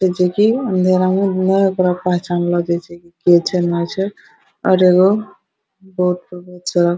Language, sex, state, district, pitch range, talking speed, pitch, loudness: Hindi, female, Bihar, Araria, 175-190 Hz, 135 wpm, 180 Hz, -16 LUFS